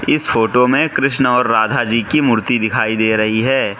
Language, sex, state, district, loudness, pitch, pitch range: Hindi, male, Manipur, Imphal West, -14 LUFS, 115 Hz, 110-130 Hz